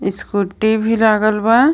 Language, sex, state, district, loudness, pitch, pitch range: Bhojpuri, female, Jharkhand, Palamu, -15 LUFS, 220 Hz, 215-225 Hz